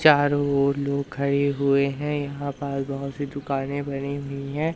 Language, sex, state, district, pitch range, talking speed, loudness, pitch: Hindi, male, Madhya Pradesh, Umaria, 140-145 Hz, 175 wpm, -25 LUFS, 140 Hz